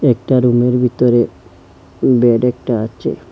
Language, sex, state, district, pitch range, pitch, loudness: Bengali, male, Assam, Hailakandi, 110-125 Hz, 120 Hz, -14 LUFS